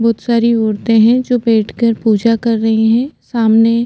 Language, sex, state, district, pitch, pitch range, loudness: Hindi, female, Chhattisgarh, Jashpur, 230 Hz, 225-235 Hz, -13 LUFS